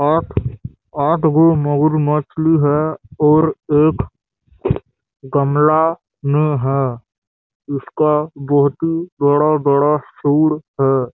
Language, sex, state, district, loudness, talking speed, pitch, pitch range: Hindi, male, Chhattisgarh, Bastar, -16 LUFS, 85 wpm, 150 Hz, 140-155 Hz